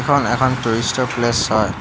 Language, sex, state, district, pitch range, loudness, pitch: Assamese, male, Assam, Hailakandi, 115-130 Hz, -17 LUFS, 120 Hz